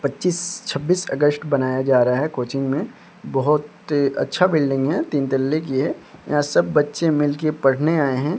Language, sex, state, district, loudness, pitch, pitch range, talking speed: Hindi, male, Odisha, Sambalpur, -20 LUFS, 145 Hz, 135-155 Hz, 180 wpm